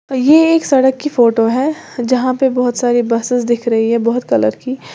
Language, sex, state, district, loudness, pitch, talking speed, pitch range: Hindi, female, Uttar Pradesh, Lalitpur, -14 LUFS, 250 Hz, 205 wpm, 235-265 Hz